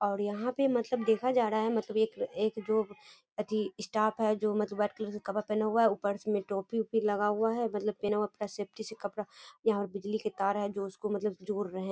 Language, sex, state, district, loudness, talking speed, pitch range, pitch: Hindi, female, Bihar, Darbhanga, -32 LUFS, 250 wpm, 205-220 Hz, 210 Hz